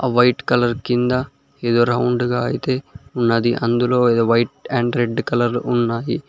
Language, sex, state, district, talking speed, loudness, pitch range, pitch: Telugu, male, Telangana, Mahabubabad, 155 wpm, -18 LUFS, 120-125 Hz, 120 Hz